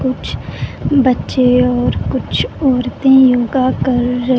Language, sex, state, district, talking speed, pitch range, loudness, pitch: Hindi, female, Punjab, Pathankot, 110 wpm, 250-260 Hz, -14 LUFS, 255 Hz